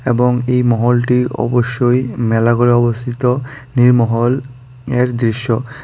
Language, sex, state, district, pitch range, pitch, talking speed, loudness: Bengali, female, Tripura, West Tripura, 120-125 Hz, 125 Hz, 105 wpm, -15 LUFS